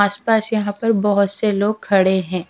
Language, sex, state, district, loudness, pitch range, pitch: Hindi, female, Punjab, Fazilka, -18 LUFS, 195-215 Hz, 205 Hz